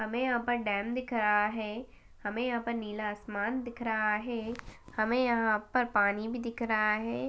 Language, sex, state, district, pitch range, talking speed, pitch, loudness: Hindi, female, Chhattisgarh, Bastar, 210-240 Hz, 190 wpm, 225 Hz, -31 LUFS